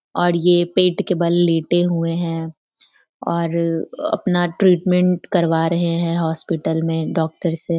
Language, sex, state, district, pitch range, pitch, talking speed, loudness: Hindi, female, Bihar, Sitamarhi, 165-175 Hz, 170 Hz, 140 wpm, -18 LUFS